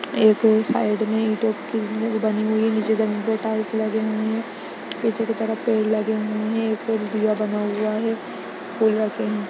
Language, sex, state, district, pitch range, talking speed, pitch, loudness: Hindi, female, Bihar, Jamui, 215-220 Hz, 185 wpm, 220 Hz, -22 LUFS